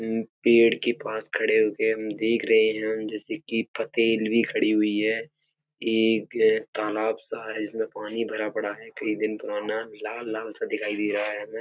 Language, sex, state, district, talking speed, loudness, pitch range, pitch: Hindi, male, Uttar Pradesh, Etah, 185 wpm, -25 LUFS, 110-115 Hz, 110 Hz